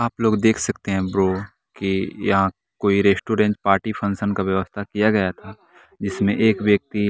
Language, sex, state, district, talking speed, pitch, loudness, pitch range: Hindi, male, Bihar, West Champaran, 160 wpm, 100 Hz, -21 LUFS, 95-105 Hz